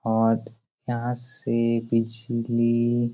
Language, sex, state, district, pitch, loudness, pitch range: Hindi, male, Jharkhand, Jamtara, 115 Hz, -25 LUFS, 115-120 Hz